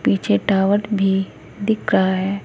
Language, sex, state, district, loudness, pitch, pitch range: Hindi, female, Uttar Pradesh, Saharanpur, -19 LUFS, 195 Hz, 190-205 Hz